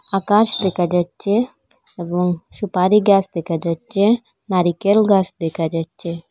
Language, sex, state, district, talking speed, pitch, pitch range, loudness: Bengali, female, Assam, Hailakandi, 115 wpm, 185 Hz, 170-205 Hz, -18 LUFS